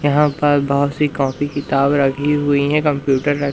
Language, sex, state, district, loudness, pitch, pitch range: Hindi, male, Madhya Pradesh, Umaria, -17 LUFS, 145 Hz, 140-145 Hz